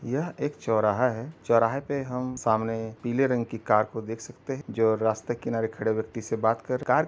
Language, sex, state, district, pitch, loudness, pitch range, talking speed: Hindi, male, Uttar Pradesh, Gorakhpur, 115 Hz, -27 LUFS, 110-130 Hz, 230 wpm